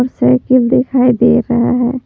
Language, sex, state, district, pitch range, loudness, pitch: Hindi, female, Jharkhand, Palamu, 240-255 Hz, -12 LUFS, 250 Hz